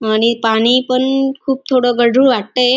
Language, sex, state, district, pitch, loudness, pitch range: Marathi, female, Maharashtra, Dhule, 250 Hz, -14 LUFS, 230-265 Hz